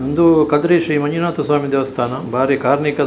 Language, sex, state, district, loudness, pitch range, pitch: Tulu, male, Karnataka, Dakshina Kannada, -16 LUFS, 135-155 Hz, 145 Hz